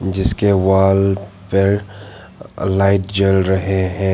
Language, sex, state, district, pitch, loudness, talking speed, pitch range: Hindi, male, Arunachal Pradesh, Papum Pare, 95 Hz, -16 LUFS, 100 wpm, 95-100 Hz